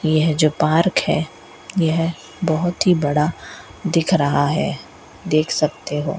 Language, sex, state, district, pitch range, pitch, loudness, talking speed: Hindi, female, Rajasthan, Bikaner, 150-170 Hz, 155 Hz, -19 LUFS, 145 wpm